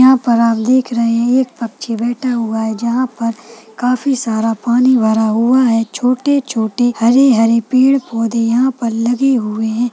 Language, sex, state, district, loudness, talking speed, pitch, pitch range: Hindi, female, Chhattisgarh, Balrampur, -14 LUFS, 175 wpm, 235 Hz, 225-255 Hz